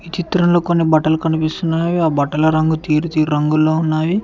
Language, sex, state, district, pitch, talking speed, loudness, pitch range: Telugu, male, Telangana, Mahabubabad, 160 Hz, 155 wpm, -16 LUFS, 155-170 Hz